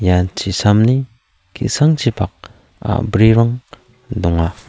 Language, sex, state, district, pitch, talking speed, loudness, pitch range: Garo, male, Meghalaya, South Garo Hills, 110 Hz, 65 wpm, -16 LUFS, 95-120 Hz